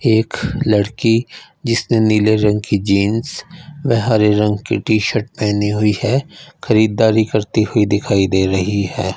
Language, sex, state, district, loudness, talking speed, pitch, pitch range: Hindi, male, Punjab, Fazilka, -16 LUFS, 150 wpm, 110 Hz, 105-115 Hz